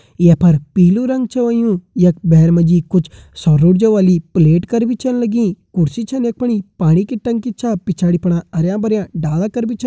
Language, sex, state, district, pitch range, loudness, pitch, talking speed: Hindi, male, Uttarakhand, Uttarkashi, 170-235 Hz, -14 LUFS, 190 Hz, 215 wpm